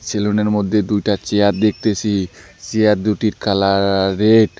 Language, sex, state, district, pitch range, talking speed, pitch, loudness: Bengali, male, West Bengal, Alipurduar, 100-105 Hz, 130 wpm, 105 Hz, -16 LUFS